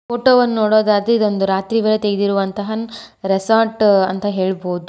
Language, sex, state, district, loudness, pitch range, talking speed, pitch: Kannada, female, Karnataka, Koppal, -16 LUFS, 195-225 Hz, 135 wpm, 210 Hz